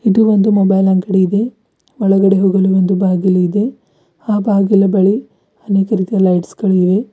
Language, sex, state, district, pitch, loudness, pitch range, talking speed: Kannada, female, Karnataka, Bidar, 195 Hz, -13 LUFS, 190-210 Hz, 145 wpm